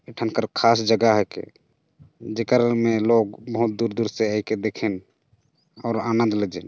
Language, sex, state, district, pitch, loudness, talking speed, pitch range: Chhattisgarhi, male, Chhattisgarh, Jashpur, 115 Hz, -22 LUFS, 180 wpm, 110-115 Hz